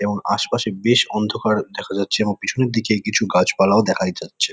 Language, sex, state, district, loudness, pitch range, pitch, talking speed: Bengali, male, West Bengal, Kolkata, -19 LUFS, 105-115 Hz, 105 Hz, 170 wpm